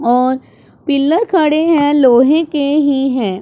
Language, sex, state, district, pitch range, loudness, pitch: Hindi, male, Punjab, Pathankot, 260-310 Hz, -13 LUFS, 285 Hz